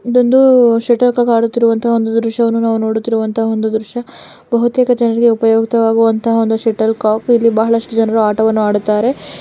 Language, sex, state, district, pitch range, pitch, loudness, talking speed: Kannada, female, Karnataka, Dakshina Kannada, 225-235 Hz, 230 Hz, -13 LUFS, 135 wpm